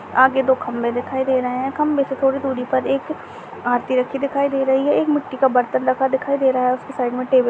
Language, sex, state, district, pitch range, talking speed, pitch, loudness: Hindi, female, Chhattisgarh, Jashpur, 255-275 Hz, 265 wpm, 265 Hz, -19 LUFS